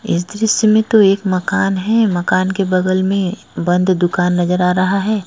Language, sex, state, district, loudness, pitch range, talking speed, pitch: Hindi, female, Goa, North and South Goa, -15 LUFS, 180-205 Hz, 195 wpm, 190 Hz